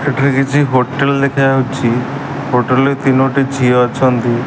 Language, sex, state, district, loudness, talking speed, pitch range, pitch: Odia, male, Odisha, Sambalpur, -13 LUFS, 120 wpm, 125-140 Hz, 135 Hz